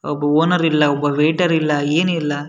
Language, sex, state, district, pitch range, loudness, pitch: Kannada, male, Karnataka, Shimoga, 145-165 Hz, -17 LUFS, 150 Hz